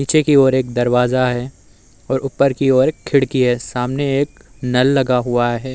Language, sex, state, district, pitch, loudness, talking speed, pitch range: Hindi, male, Uttar Pradesh, Muzaffarnagar, 130 Hz, -16 LUFS, 200 wpm, 120-135 Hz